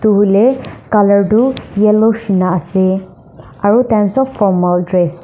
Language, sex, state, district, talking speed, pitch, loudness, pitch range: Nagamese, female, Nagaland, Dimapur, 150 wpm, 200 Hz, -13 LUFS, 185-220 Hz